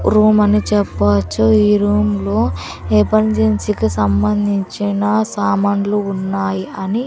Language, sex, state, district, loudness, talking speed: Telugu, female, Andhra Pradesh, Sri Satya Sai, -15 LUFS, 100 wpm